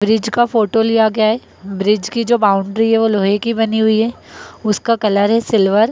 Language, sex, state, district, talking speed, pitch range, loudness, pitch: Hindi, female, Uttar Pradesh, Etah, 225 wpm, 210-225 Hz, -15 LUFS, 220 Hz